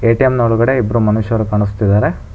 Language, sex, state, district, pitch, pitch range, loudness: Kannada, male, Karnataka, Bangalore, 110 Hz, 105-115 Hz, -14 LUFS